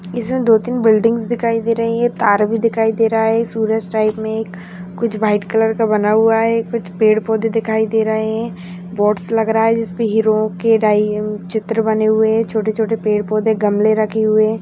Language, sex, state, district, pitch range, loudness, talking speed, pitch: Hindi, female, Bihar, Jahanabad, 215-225 Hz, -16 LUFS, 210 wpm, 220 Hz